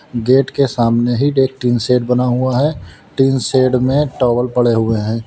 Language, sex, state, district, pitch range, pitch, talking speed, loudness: Hindi, male, Uttar Pradesh, Lalitpur, 120-135 Hz, 125 Hz, 195 wpm, -15 LUFS